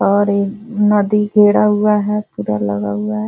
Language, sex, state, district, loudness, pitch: Hindi, female, Bihar, Jahanabad, -15 LUFS, 205 Hz